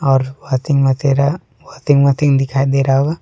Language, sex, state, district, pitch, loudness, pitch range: Hindi, male, Jharkhand, Deoghar, 140 Hz, -15 LUFS, 135-145 Hz